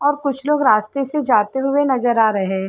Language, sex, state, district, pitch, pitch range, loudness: Hindi, female, Uttar Pradesh, Varanasi, 270 Hz, 215-280 Hz, -17 LUFS